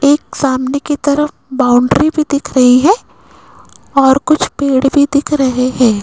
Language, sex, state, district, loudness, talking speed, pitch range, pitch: Hindi, female, Rajasthan, Jaipur, -12 LUFS, 160 wpm, 260-295 Hz, 280 Hz